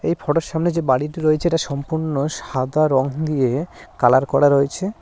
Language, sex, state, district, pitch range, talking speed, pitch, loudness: Bengali, male, West Bengal, Cooch Behar, 140-165 Hz, 180 wpm, 150 Hz, -19 LUFS